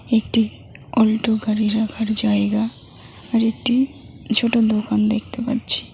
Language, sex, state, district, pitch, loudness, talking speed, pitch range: Bengali, female, West Bengal, Cooch Behar, 225 Hz, -19 LUFS, 110 wpm, 215-230 Hz